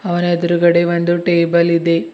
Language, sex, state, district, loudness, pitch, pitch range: Kannada, male, Karnataka, Bidar, -14 LUFS, 170 Hz, 170-175 Hz